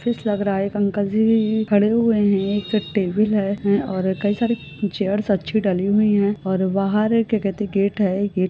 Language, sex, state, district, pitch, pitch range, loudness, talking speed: Hindi, female, Jharkhand, Jamtara, 205 Hz, 195-215 Hz, -20 LUFS, 205 wpm